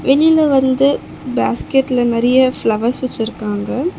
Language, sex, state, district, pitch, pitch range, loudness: Tamil, female, Tamil Nadu, Chennai, 260 Hz, 235-275 Hz, -15 LUFS